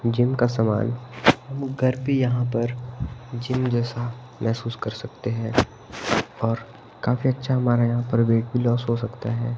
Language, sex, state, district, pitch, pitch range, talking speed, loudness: Hindi, male, Himachal Pradesh, Shimla, 120 Hz, 115-125 Hz, 165 wpm, -24 LUFS